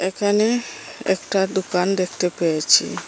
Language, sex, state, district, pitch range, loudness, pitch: Bengali, female, Assam, Hailakandi, 180-205 Hz, -20 LUFS, 190 Hz